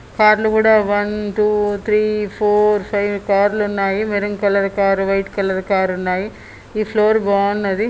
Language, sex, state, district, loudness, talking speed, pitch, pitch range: Telugu, female, Telangana, Nalgonda, -17 LUFS, 150 wpm, 205 Hz, 200-210 Hz